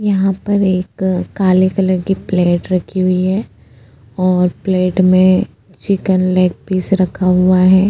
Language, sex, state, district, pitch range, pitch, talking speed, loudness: Hindi, female, Goa, North and South Goa, 180-190 Hz, 185 Hz, 145 wpm, -14 LUFS